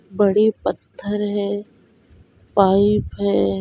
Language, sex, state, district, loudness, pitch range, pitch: Hindi, female, Bihar, Kishanganj, -19 LUFS, 190-205 Hz, 200 Hz